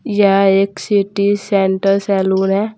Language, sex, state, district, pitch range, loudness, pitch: Hindi, female, Uttar Pradesh, Saharanpur, 195-205 Hz, -15 LUFS, 200 Hz